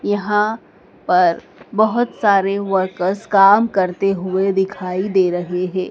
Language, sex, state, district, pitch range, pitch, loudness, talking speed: Hindi, female, Madhya Pradesh, Dhar, 185-205 Hz, 195 Hz, -17 LUFS, 120 wpm